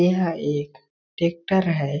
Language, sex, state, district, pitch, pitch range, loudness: Hindi, male, Chhattisgarh, Balrampur, 170 Hz, 145-175 Hz, -23 LUFS